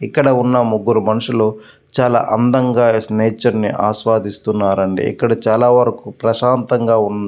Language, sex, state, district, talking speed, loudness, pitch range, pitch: Telugu, male, Andhra Pradesh, Visakhapatnam, 115 wpm, -15 LUFS, 110-125 Hz, 115 Hz